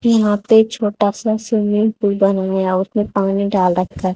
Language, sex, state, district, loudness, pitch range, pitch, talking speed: Hindi, female, Haryana, Charkhi Dadri, -16 LUFS, 190-220 Hz, 205 Hz, 160 wpm